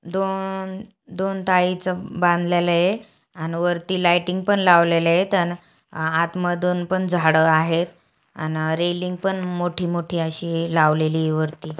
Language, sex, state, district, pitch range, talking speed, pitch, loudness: Marathi, female, Maharashtra, Aurangabad, 165-185 Hz, 130 wpm, 175 Hz, -21 LUFS